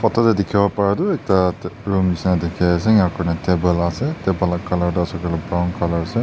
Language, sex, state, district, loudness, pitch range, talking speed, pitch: Nagamese, male, Nagaland, Dimapur, -19 LUFS, 85-100 Hz, 200 wpm, 90 Hz